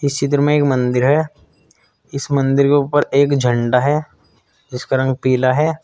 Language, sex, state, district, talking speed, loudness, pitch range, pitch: Hindi, male, Uttar Pradesh, Saharanpur, 185 wpm, -16 LUFS, 130-145 Hz, 140 Hz